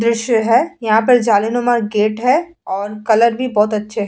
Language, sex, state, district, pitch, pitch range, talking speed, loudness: Hindi, female, Uttar Pradesh, Muzaffarnagar, 230 Hz, 215-245 Hz, 190 wpm, -15 LUFS